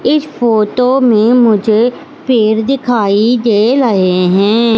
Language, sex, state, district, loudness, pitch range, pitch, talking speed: Hindi, female, Madhya Pradesh, Katni, -11 LUFS, 215-250 Hz, 230 Hz, 115 wpm